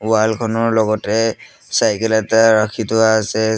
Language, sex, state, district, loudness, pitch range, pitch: Assamese, male, Assam, Sonitpur, -16 LUFS, 110-115 Hz, 110 Hz